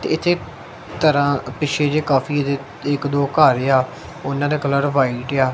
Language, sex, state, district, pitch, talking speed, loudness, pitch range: Punjabi, male, Punjab, Kapurthala, 140 Hz, 150 wpm, -19 LUFS, 135-145 Hz